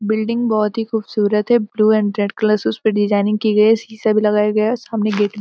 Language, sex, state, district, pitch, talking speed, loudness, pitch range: Hindi, female, Bihar, Gopalganj, 215 Hz, 255 wpm, -17 LUFS, 210-220 Hz